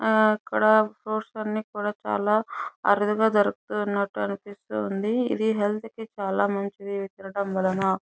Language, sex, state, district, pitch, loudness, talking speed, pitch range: Telugu, female, Andhra Pradesh, Chittoor, 205 Hz, -25 LUFS, 125 wpm, 200-215 Hz